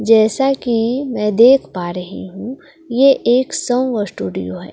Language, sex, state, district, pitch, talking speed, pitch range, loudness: Hindi, female, Delhi, New Delhi, 235 Hz, 150 wpm, 205-265 Hz, -16 LUFS